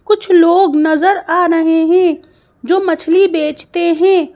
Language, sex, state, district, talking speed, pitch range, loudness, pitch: Hindi, female, Madhya Pradesh, Bhopal, 140 wpm, 325-370 Hz, -12 LUFS, 345 Hz